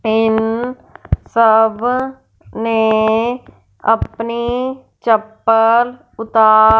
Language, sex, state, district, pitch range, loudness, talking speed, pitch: Hindi, female, Punjab, Fazilka, 220-240 Hz, -15 LUFS, 55 wpm, 225 Hz